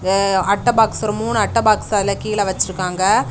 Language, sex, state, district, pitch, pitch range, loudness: Tamil, female, Tamil Nadu, Kanyakumari, 200 Hz, 190-215 Hz, -17 LUFS